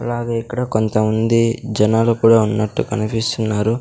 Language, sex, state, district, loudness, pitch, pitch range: Telugu, male, Andhra Pradesh, Sri Satya Sai, -17 LUFS, 115 Hz, 110-115 Hz